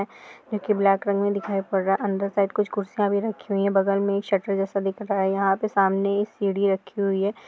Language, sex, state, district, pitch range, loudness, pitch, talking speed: Hindi, female, Uttar Pradesh, Jyotiba Phule Nagar, 195-205 Hz, -24 LUFS, 200 Hz, 265 wpm